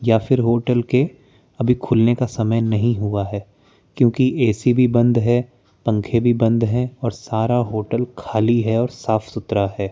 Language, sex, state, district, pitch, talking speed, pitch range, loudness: Hindi, male, Chandigarh, Chandigarh, 115 Hz, 175 wpm, 110-125 Hz, -19 LUFS